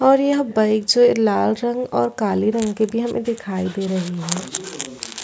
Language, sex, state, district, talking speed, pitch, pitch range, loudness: Hindi, female, Chhattisgarh, Bilaspur, 195 wpm, 215 Hz, 185-235 Hz, -20 LUFS